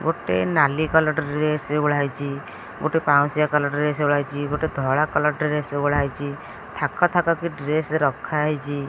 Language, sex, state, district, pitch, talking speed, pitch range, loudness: Odia, female, Odisha, Khordha, 150 Hz, 160 wpm, 145-155 Hz, -22 LUFS